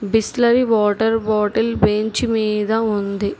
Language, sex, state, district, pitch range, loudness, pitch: Telugu, female, Telangana, Hyderabad, 210-225 Hz, -18 LUFS, 220 Hz